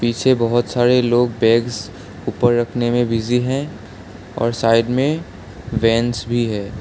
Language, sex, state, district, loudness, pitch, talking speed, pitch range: Hindi, male, Assam, Sonitpur, -18 LUFS, 120 Hz, 140 wpm, 110-120 Hz